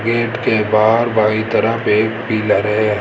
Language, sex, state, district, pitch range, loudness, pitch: Hindi, male, Rajasthan, Jaipur, 105-115 Hz, -15 LUFS, 110 Hz